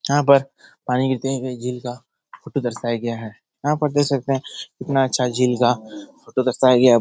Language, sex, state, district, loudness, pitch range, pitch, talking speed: Hindi, male, Bihar, Jahanabad, -20 LUFS, 125-140 Hz, 130 Hz, 215 wpm